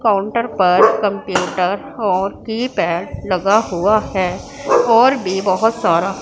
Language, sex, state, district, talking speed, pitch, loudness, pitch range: Hindi, female, Punjab, Pathankot, 115 wpm, 200 Hz, -16 LUFS, 185-225 Hz